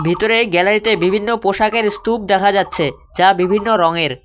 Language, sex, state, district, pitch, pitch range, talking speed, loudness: Bengali, male, West Bengal, Cooch Behar, 200 Hz, 180-220 Hz, 155 wpm, -15 LUFS